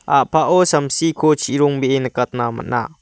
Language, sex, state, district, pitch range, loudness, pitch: Garo, male, Meghalaya, West Garo Hills, 125-155 Hz, -17 LUFS, 140 Hz